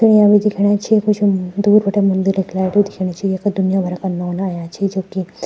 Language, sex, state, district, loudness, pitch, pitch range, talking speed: Garhwali, female, Uttarakhand, Tehri Garhwal, -16 LUFS, 195 Hz, 185-205 Hz, 230 wpm